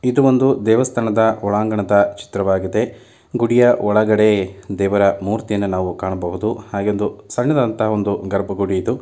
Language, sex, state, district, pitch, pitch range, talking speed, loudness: Kannada, male, Karnataka, Mysore, 105 Hz, 100-115 Hz, 115 wpm, -18 LUFS